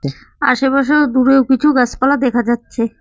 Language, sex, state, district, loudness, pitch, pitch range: Bengali, female, West Bengal, Cooch Behar, -14 LUFS, 260 Hz, 240-275 Hz